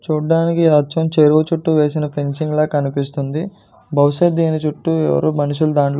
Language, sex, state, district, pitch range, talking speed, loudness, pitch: Telugu, male, Andhra Pradesh, Guntur, 145-160 Hz, 150 wpm, -16 LUFS, 155 Hz